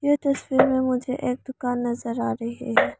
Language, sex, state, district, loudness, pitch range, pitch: Hindi, female, Arunachal Pradesh, Lower Dibang Valley, -24 LUFS, 240-265 Hz, 255 Hz